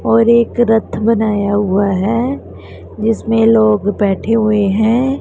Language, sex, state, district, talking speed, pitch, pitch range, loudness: Hindi, male, Punjab, Pathankot, 125 wpm, 220 Hz, 205-230 Hz, -13 LUFS